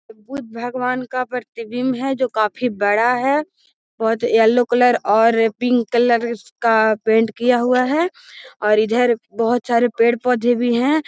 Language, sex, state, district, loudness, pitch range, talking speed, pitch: Magahi, female, Bihar, Gaya, -18 LUFS, 225-250 Hz, 150 wpm, 240 Hz